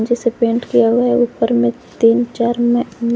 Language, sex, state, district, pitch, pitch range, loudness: Hindi, female, Jharkhand, Garhwa, 235 Hz, 230-240 Hz, -15 LUFS